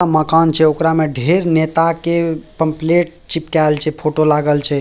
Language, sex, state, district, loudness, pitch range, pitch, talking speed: Maithili, male, Bihar, Purnia, -15 LUFS, 155-165 Hz, 160 Hz, 160 wpm